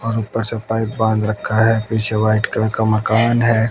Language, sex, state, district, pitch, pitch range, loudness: Hindi, male, Haryana, Jhajjar, 110 Hz, 110-115 Hz, -17 LUFS